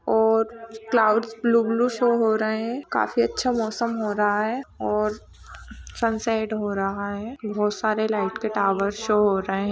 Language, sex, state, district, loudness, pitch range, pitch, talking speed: Hindi, female, Maharashtra, Chandrapur, -23 LUFS, 210-230 Hz, 220 Hz, 160 wpm